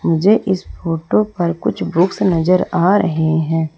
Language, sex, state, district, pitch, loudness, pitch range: Hindi, female, Madhya Pradesh, Umaria, 175 Hz, -16 LUFS, 165-190 Hz